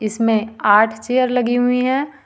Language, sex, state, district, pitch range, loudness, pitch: Hindi, female, Jharkhand, Ranchi, 220-255 Hz, -17 LUFS, 245 Hz